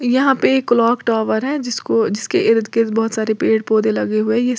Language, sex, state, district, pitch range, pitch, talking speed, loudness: Hindi, female, Uttar Pradesh, Lalitpur, 220-245 Hz, 225 Hz, 235 wpm, -17 LUFS